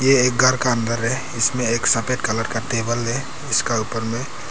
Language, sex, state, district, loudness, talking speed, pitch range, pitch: Hindi, male, Arunachal Pradesh, Papum Pare, -20 LUFS, 215 wpm, 115-125 Hz, 120 Hz